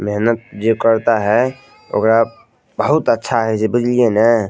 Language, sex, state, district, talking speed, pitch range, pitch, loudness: Maithili, male, Bihar, Madhepura, 145 wpm, 110-115 Hz, 115 Hz, -16 LUFS